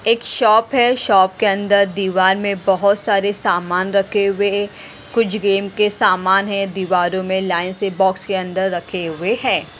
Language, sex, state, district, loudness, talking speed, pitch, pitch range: Hindi, female, Punjab, Pathankot, -17 LUFS, 170 wpm, 195 Hz, 190-205 Hz